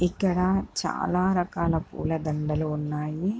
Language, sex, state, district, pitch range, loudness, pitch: Telugu, female, Andhra Pradesh, Guntur, 155-185 Hz, -27 LUFS, 170 Hz